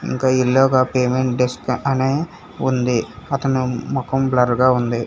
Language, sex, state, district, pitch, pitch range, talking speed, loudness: Telugu, male, Telangana, Hyderabad, 130 Hz, 125-135 Hz, 140 wpm, -18 LUFS